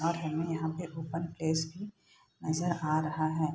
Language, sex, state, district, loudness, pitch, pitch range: Hindi, female, Bihar, Saharsa, -33 LUFS, 160 Hz, 155-165 Hz